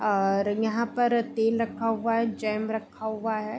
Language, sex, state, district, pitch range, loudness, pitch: Hindi, female, Bihar, Vaishali, 215-230 Hz, -27 LUFS, 220 Hz